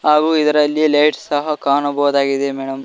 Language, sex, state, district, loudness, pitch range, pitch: Kannada, male, Karnataka, Koppal, -16 LUFS, 140-150 Hz, 145 Hz